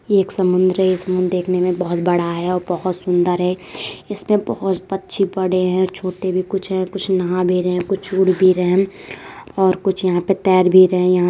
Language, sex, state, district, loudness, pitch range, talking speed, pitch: Hindi, female, Uttar Pradesh, Deoria, -17 LUFS, 180-190 Hz, 235 wpm, 185 Hz